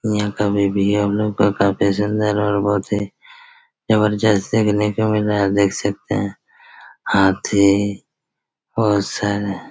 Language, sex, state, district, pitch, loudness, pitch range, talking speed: Hindi, male, Chhattisgarh, Raigarh, 105 Hz, -18 LUFS, 100-105 Hz, 115 wpm